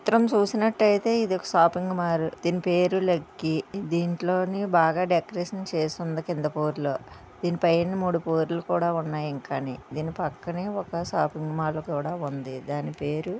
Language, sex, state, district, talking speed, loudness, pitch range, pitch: Telugu, female, Andhra Pradesh, Visakhapatnam, 150 wpm, -26 LUFS, 155-185 Hz, 170 Hz